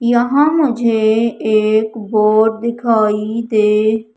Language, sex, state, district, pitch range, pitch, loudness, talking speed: Hindi, female, Madhya Pradesh, Umaria, 215-235 Hz, 220 Hz, -14 LUFS, 85 wpm